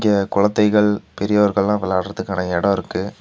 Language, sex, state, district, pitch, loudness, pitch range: Tamil, male, Tamil Nadu, Nilgiris, 100 Hz, -18 LUFS, 95-105 Hz